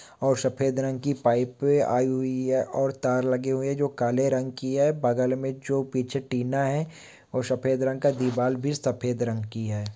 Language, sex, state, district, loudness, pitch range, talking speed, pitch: Hindi, male, West Bengal, Malda, -26 LUFS, 125-135 Hz, 200 wpm, 130 Hz